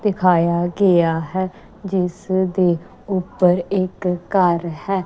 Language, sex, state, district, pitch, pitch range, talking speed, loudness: Punjabi, female, Punjab, Kapurthala, 185 Hz, 175-190 Hz, 105 wpm, -19 LUFS